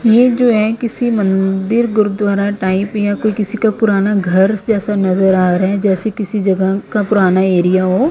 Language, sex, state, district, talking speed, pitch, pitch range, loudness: Hindi, female, Punjab, Kapurthala, 190 wpm, 205 Hz, 190-215 Hz, -14 LUFS